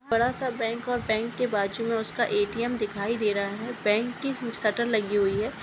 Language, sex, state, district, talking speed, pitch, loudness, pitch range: Hindi, female, Maharashtra, Sindhudurg, 205 wpm, 230 Hz, -27 LUFS, 210-240 Hz